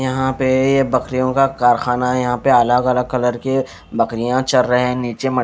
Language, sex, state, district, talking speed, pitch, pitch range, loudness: Hindi, male, Haryana, Charkhi Dadri, 210 wpm, 125 Hz, 125-130 Hz, -17 LUFS